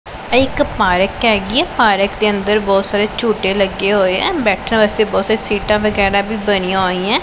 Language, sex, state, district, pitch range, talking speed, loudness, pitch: Punjabi, female, Punjab, Pathankot, 195-215 Hz, 190 wpm, -15 LUFS, 205 Hz